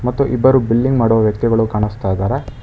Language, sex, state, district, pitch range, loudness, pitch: Kannada, male, Karnataka, Bangalore, 105-130 Hz, -15 LUFS, 115 Hz